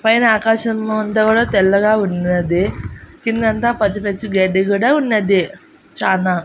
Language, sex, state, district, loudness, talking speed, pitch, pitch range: Telugu, female, Andhra Pradesh, Annamaya, -16 LUFS, 110 wpm, 215 Hz, 190-225 Hz